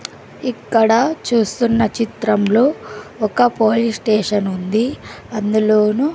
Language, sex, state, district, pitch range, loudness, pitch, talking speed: Telugu, female, Andhra Pradesh, Sri Satya Sai, 215-235 Hz, -17 LUFS, 225 Hz, 80 wpm